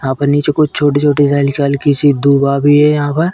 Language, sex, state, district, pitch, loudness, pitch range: Hindi, female, Uttar Pradesh, Etah, 145 Hz, -12 LUFS, 140-145 Hz